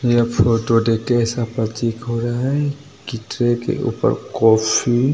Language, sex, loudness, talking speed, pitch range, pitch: Bhojpuri, male, -18 LUFS, 175 wpm, 115-120 Hz, 120 Hz